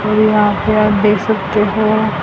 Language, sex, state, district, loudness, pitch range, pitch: Hindi, female, Haryana, Jhajjar, -13 LUFS, 210-215 Hz, 210 Hz